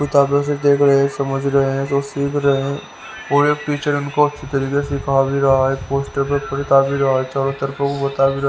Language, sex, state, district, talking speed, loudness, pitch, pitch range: Hindi, male, Haryana, Rohtak, 235 wpm, -18 LUFS, 140 Hz, 135-145 Hz